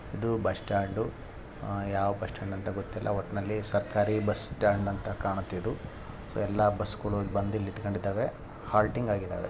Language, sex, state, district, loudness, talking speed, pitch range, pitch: Kannada, male, Karnataka, Raichur, -31 LUFS, 160 wpm, 100-110 Hz, 105 Hz